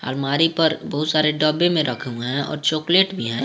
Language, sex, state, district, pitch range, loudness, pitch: Hindi, male, Jharkhand, Garhwa, 135-160 Hz, -20 LUFS, 155 Hz